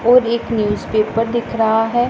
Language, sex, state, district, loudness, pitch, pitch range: Hindi, female, Punjab, Pathankot, -17 LUFS, 230 Hz, 220-235 Hz